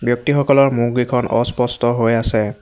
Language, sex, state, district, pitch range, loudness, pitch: Assamese, male, Assam, Hailakandi, 115-125 Hz, -16 LUFS, 120 Hz